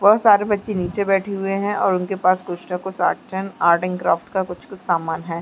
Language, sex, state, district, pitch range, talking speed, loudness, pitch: Hindi, female, Chhattisgarh, Bastar, 175-195 Hz, 245 wpm, -20 LUFS, 190 Hz